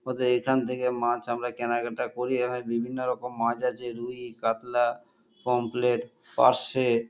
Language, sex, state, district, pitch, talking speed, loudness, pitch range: Bengali, male, West Bengal, Kolkata, 120 Hz, 135 wpm, -27 LUFS, 120-125 Hz